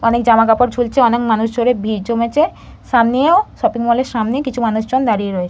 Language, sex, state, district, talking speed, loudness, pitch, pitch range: Bengali, female, West Bengal, Purulia, 165 wpm, -15 LUFS, 235 Hz, 225-250 Hz